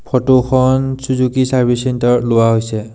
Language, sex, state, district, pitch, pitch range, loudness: Assamese, male, Assam, Sonitpur, 125 Hz, 120-130 Hz, -14 LUFS